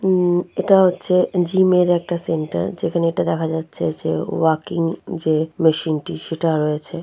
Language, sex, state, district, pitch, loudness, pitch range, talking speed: Bengali, female, West Bengal, Jalpaiguri, 170 Hz, -19 LUFS, 160-180 Hz, 145 wpm